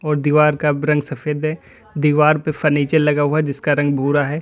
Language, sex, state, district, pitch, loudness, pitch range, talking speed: Hindi, male, Uttar Pradesh, Lalitpur, 150 Hz, -17 LUFS, 145-155 Hz, 215 wpm